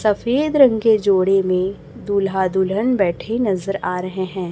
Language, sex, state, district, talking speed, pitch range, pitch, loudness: Hindi, female, Chhattisgarh, Raipur, 160 wpm, 185-220 Hz, 195 Hz, -18 LUFS